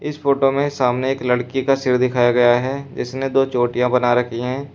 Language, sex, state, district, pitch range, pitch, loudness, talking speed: Hindi, male, Uttar Pradesh, Shamli, 125-135 Hz, 130 Hz, -18 LUFS, 215 wpm